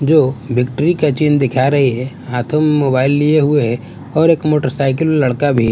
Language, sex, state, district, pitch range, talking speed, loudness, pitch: Hindi, male, Bihar, West Champaran, 130-150 Hz, 200 wpm, -14 LUFS, 140 Hz